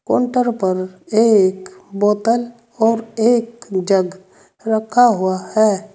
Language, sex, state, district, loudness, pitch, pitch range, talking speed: Hindi, male, Uttar Pradesh, Saharanpur, -17 LUFS, 215 Hz, 190-230 Hz, 100 wpm